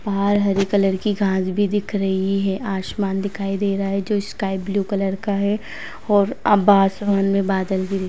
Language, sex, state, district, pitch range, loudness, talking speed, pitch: Hindi, female, Uttar Pradesh, Varanasi, 195-205 Hz, -20 LUFS, 200 wpm, 195 Hz